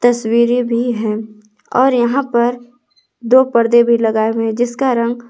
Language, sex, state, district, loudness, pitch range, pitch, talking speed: Hindi, female, Jharkhand, Palamu, -15 LUFS, 225-245 Hz, 235 Hz, 160 wpm